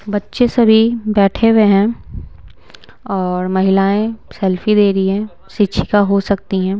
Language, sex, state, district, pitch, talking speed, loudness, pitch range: Hindi, female, Bihar, Patna, 200 Hz, 130 wpm, -14 LUFS, 195-215 Hz